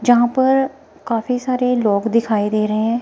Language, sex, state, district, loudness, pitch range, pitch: Hindi, female, Himachal Pradesh, Shimla, -18 LUFS, 220-255 Hz, 240 Hz